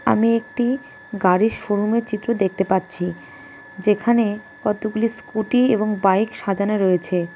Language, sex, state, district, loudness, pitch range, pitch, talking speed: Bengali, female, West Bengal, Cooch Behar, -20 LUFS, 190-230 Hz, 210 Hz, 120 wpm